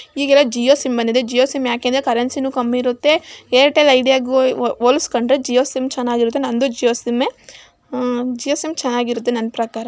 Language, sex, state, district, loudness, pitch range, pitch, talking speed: Kannada, male, Karnataka, Mysore, -17 LUFS, 245-275 Hz, 255 Hz, 165 wpm